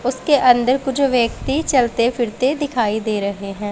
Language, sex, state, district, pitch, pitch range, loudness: Hindi, female, Punjab, Pathankot, 245 Hz, 220-265 Hz, -18 LUFS